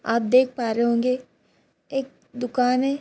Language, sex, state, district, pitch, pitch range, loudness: Hindi, female, Bihar, Purnia, 250 Hz, 235-260 Hz, -23 LUFS